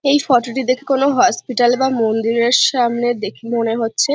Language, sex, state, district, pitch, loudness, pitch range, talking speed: Bengali, female, West Bengal, Jhargram, 245 Hz, -16 LUFS, 235-270 Hz, 160 wpm